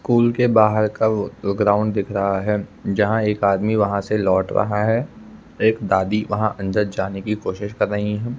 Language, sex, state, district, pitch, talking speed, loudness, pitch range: Hindi, male, Madhya Pradesh, Bhopal, 105 Hz, 185 wpm, -20 LUFS, 100-110 Hz